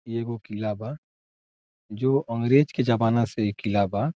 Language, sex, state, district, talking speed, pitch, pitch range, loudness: Bhojpuri, male, Bihar, Saran, 175 wpm, 115 Hz, 105-130 Hz, -25 LUFS